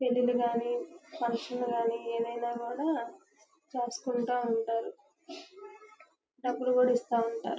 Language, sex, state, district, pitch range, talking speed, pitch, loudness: Telugu, female, Andhra Pradesh, Guntur, 235-320 Hz, 105 wpm, 245 Hz, -32 LUFS